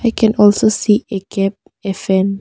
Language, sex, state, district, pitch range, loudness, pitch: English, female, Arunachal Pradesh, Longding, 195-220 Hz, -15 LUFS, 205 Hz